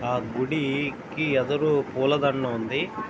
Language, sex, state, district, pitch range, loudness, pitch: Telugu, male, Andhra Pradesh, Srikakulam, 130-150 Hz, -25 LUFS, 135 Hz